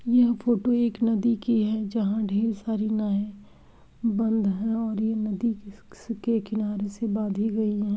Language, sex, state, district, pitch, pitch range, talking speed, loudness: Hindi, male, Uttar Pradesh, Varanasi, 220 Hz, 210-230 Hz, 160 wpm, -26 LUFS